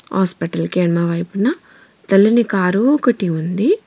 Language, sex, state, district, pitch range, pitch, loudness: Telugu, female, Telangana, Hyderabad, 170-235 Hz, 190 Hz, -16 LUFS